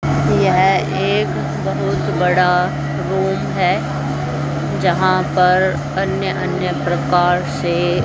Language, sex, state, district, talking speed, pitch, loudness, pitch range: Hindi, female, Haryana, Charkhi Dadri, 90 wpm, 180 Hz, -17 LUFS, 150-185 Hz